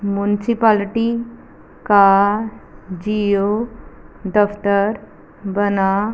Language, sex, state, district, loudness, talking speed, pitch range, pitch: Hindi, female, Punjab, Fazilka, -17 LUFS, 50 wpm, 200-220 Hz, 205 Hz